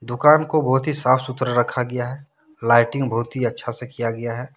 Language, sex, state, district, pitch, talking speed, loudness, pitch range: Hindi, male, Jharkhand, Deoghar, 125 Hz, 225 wpm, -20 LUFS, 120-135 Hz